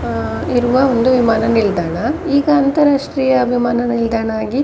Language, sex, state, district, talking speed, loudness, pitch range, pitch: Kannada, female, Karnataka, Dakshina Kannada, 140 wpm, -15 LUFS, 220-270 Hz, 245 Hz